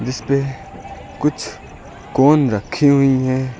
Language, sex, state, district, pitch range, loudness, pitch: Hindi, male, Uttar Pradesh, Lucknow, 130-140 Hz, -17 LUFS, 135 Hz